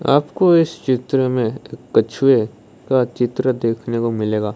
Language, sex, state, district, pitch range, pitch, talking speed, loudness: Hindi, female, Odisha, Malkangiri, 115-135 Hz, 125 Hz, 130 wpm, -18 LUFS